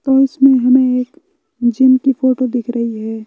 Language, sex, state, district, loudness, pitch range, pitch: Hindi, male, Bihar, West Champaran, -14 LUFS, 240-270 Hz, 255 Hz